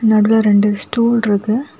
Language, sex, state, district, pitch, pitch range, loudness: Tamil, female, Tamil Nadu, Kanyakumari, 220 Hz, 210-230 Hz, -14 LUFS